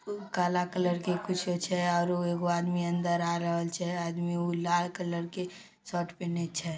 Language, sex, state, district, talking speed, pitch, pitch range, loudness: Maithili, female, Bihar, Samastipur, 160 wpm, 175 Hz, 170-180 Hz, -31 LUFS